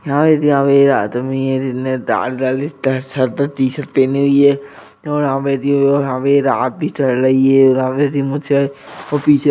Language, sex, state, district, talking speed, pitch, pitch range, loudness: Hindi, male, Uttar Pradesh, Etah, 50 wpm, 140 Hz, 130-140 Hz, -15 LUFS